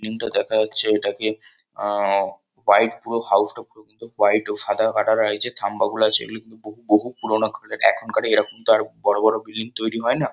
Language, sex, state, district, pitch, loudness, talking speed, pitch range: Bengali, male, West Bengal, Kolkata, 110 Hz, -21 LUFS, 205 wpm, 105-110 Hz